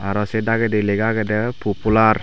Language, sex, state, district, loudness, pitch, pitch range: Chakma, male, Tripura, Dhalai, -19 LUFS, 110 Hz, 105-110 Hz